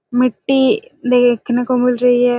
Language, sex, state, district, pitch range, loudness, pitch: Hindi, female, Chhattisgarh, Raigarh, 245-255 Hz, -15 LUFS, 250 Hz